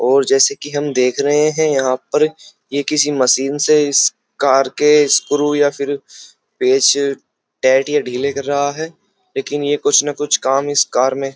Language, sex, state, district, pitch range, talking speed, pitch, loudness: Hindi, male, Uttar Pradesh, Jyotiba Phule Nagar, 140-155 Hz, 190 wpm, 145 Hz, -15 LUFS